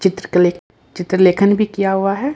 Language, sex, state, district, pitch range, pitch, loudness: Hindi, male, Bihar, Katihar, 180-200 Hz, 195 Hz, -15 LUFS